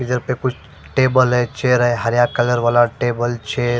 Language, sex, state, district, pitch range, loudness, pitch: Hindi, female, Punjab, Fazilka, 120-125 Hz, -17 LUFS, 120 Hz